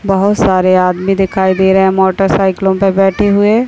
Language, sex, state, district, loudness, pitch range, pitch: Hindi, female, Uttar Pradesh, Deoria, -11 LUFS, 190-195 Hz, 195 Hz